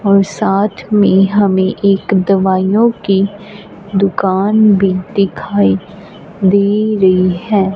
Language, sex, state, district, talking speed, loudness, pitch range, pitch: Hindi, female, Punjab, Fazilka, 100 wpm, -12 LUFS, 190-205 Hz, 195 Hz